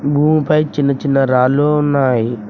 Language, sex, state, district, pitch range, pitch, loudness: Telugu, male, Telangana, Mahabubabad, 130-150 Hz, 140 Hz, -14 LUFS